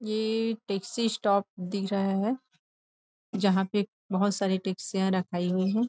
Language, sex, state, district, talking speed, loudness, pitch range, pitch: Hindi, female, Chhattisgarh, Rajnandgaon, 140 wpm, -29 LUFS, 190-215 Hz, 200 Hz